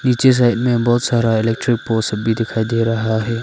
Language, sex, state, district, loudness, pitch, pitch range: Hindi, male, Arunachal Pradesh, Lower Dibang Valley, -17 LUFS, 115 Hz, 110-120 Hz